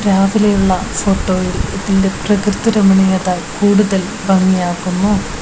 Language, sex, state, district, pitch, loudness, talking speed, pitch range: Malayalam, female, Kerala, Kozhikode, 195 Hz, -14 LUFS, 90 wpm, 185-205 Hz